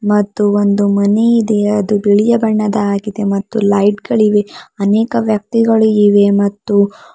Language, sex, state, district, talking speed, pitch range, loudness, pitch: Kannada, female, Karnataka, Bidar, 115 wpm, 205-215 Hz, -13 LUFS, 205 Hz